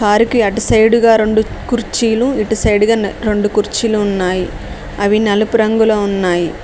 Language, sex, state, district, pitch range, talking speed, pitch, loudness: Telugu, female, Telangana, Mahabubabad, 205-225 Hz, 145 wpm, 215 Hz, -14 LUFS